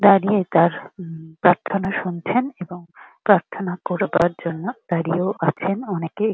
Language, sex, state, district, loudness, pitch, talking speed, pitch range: Bengali, female, West Bengal, Kolkata, -21 LUFS, 180 Hz, 115 wpm, 170-200 Hz